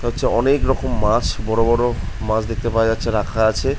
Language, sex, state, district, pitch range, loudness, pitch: Bengali, male, West Bengal, Jhargram, 110-120 Hz, -19 LUFS, 115 Hz